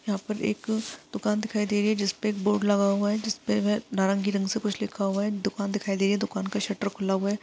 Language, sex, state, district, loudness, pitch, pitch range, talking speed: Hindi, female, Bihar, Saharsa, -27 LUFS, 205 Hz, 200-210 Hz, 285 wpm